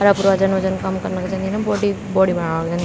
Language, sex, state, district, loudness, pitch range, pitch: Garhwali, female, Uttarakhand, Tehri Garhwal, -19 LUFS, 185-200 Hz, 190 Hz